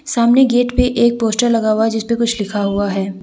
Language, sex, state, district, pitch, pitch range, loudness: Hindi, female, Jharkhand, Deoghar, 230 Hz, 210-240 Hz, -15 LUFS